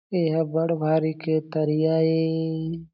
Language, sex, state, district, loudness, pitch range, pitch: Chhattisgarhi, male, Chhattisgarh, Jashpur, -24 LUFS, 160-165 Hz, 160 Hz